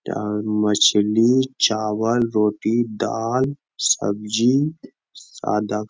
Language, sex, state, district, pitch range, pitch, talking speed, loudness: Hindi, male, Bihar, Bhagalpur, 105-120 Hz, 110 Hz, 80 wpm, -20 LUFS